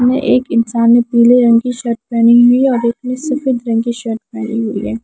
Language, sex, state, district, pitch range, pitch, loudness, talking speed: Hindi, female, Himachal Pradesh, Shimla, 230-245 Hz, 235 Hz, -13 LUFS, 250 wpm